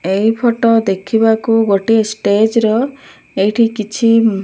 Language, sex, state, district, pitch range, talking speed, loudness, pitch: Odia, male, Odisha, Malkangiri, 205-230 Hz, 135 wpm, -13 LUFS, 225 Hz